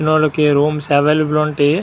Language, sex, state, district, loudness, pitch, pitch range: Telugu, male, Andhra Pradesh, Srikakulam, -15 LUFS, 150 Hz, 145-155 Hz